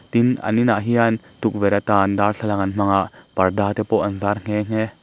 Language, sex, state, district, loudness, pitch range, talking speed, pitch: Mizo, male, Mizoram, Aizawl, -20 LUFS, 100-110 Hz, 205 wpm, 105 Hz